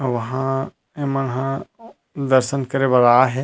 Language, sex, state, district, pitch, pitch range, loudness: Chhattisgarhi, male, Chhattisgarh, Rajnandgaon, 135 Hz, 130-135 Hz, -19 LUFS